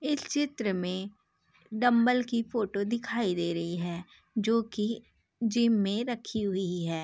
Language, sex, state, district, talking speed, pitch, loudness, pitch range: Hindi, female, Uttar Pradesh, Jalaun, 135 wpm, 220 Hz, -30 LUFS, 190-235 Hz